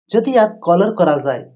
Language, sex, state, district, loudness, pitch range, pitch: Bengali, female, West Bengal, Jhargram, -15 LUFS, 150-220 Hz, 180 Hz